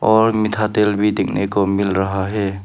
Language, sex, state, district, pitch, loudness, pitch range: Hindi, male, Arunachal Pradesh, Papum Pare, 105 Hz, -18 LUFS, 95-105 Hz